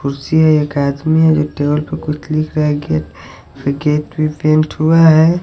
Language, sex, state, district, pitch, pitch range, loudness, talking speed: Hindi, male, Odisha, Sambalpur, 150 Hz, 145-155 Hz, -14 LUFS, 210 wpm